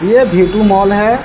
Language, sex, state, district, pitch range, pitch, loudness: Hindi, male, Bihar, Vaishali, 195-235 Hz, 210 Hz, -10 LUFS